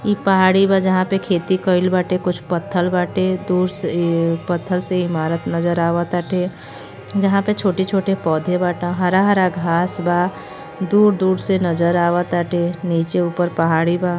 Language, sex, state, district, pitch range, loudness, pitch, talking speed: Bhojpuri, female, Uttar Pradesh, Gorakhpur, 170-185 Hz, -18 LUFS, 180 Hz, 140 wpm